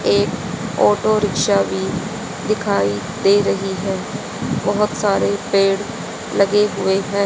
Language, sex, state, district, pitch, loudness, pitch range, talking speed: Hindi, female, Haryana, Charkhi Dadri, 200 Hz, -18 LUFS, 195-210 Hz, 115 wpm